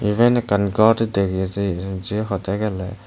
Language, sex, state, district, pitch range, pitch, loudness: Chakma, male, Tripura, West Tripura, 95-110 Hz, 100 Hz, -20 LUFS